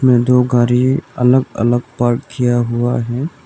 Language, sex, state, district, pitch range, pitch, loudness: Hindi, male, Arunachal Pradesh, Lower Dibang Valley, 120-130 Hz, 125 Hz, -15 LUFS